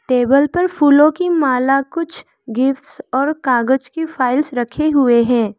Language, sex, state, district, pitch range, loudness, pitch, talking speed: Hindi, female, Arunachal Pradesh, Lower Dibang Valley, 250-305 Hz, -15 LUFS, 270 Hz, 150 wpm